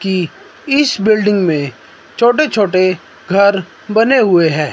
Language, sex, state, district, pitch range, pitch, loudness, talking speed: Hindi, male, Himachal Pradesh, Shimla, 180-220 Hz, 195 Hz, -13 LUFS, 115 wpm